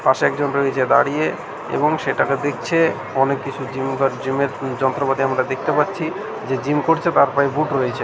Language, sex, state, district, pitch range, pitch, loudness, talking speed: Bengali, male, West Bengal, Jhargram, 135-140 Hz, 135 Hz, -19 LUFS, 170 wpm